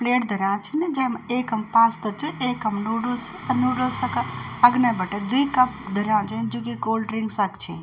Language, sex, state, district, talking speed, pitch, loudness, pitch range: Garhwali, female, Uttarakhand, Tehri Garhwal, 190 wpm, 230 Hz, -23 LUFS, 210-250 Hz